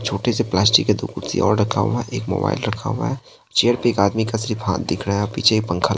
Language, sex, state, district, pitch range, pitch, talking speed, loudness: Hindi, male, Bihar, Katihar, 100-120 Hz, 110 Hz, 290 wpm, -20 LUFS